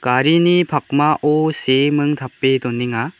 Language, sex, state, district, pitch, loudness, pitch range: Garo, male, Meghalaya, West Garo Hills, 145 Hz, -16 LUFS, 130-155 Hz